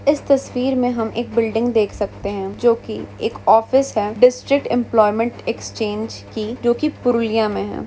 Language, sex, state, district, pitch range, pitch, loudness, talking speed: Hindi, female, West Bengal, Purulia, 215-250 Hz, 230 Hz, -19 LUFS, 175 wpm